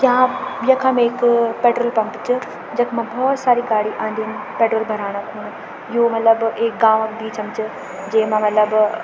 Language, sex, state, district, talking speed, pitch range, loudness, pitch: Garhwali, female, Uttarakhand, Tehri Garhwal, 160 wpm, 220-245 Hz, -18 LUFS, 225 Hz